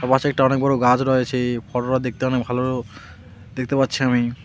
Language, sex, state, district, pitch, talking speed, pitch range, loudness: Bengali, male, West Bengal, Alipurduar, 125 Hz, 175 wpm, 120-130 Hz, -20 LUFS